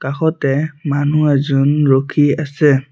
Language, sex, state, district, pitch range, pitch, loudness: Assamese, male, Assam, Sonitpur, 135-150 Hz, 145 Hz, -15 LUFS